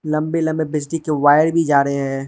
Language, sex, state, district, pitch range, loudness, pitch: Hindi, male, Arunachal Pradesh, Lower Dibang Valley, 145-160 Hz, -17 LUFS, 155 Hz